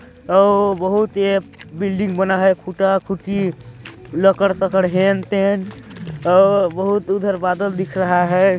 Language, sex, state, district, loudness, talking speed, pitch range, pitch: Hindi, male, Chhattisgarh, Balrampur, -17 LUFS, 120 wpm, 185-200 Hz, 190 Hz